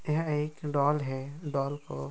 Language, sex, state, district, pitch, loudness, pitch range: Hindi, male, Bihar, Sitamarhi, 145 Hz, -31 LUFS, 135-150 Hz